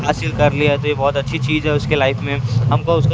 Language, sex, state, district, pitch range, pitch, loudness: Hindi, male, Chhattisgarh, Raipur, 125-150 Hz, 140 Hz, -17 LUFS